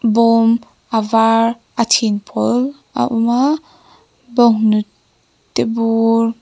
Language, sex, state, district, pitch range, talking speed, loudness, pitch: Mizo, female, Mizoram, Aizawl, 225-240 Hz, 105 wpm, -15 LUFS, 230 Hz